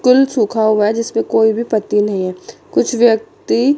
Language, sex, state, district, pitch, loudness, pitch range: Hindi, female, Chandigarh, Chandigarh, 225 Hz, -15 LUFS, 210-240 Hz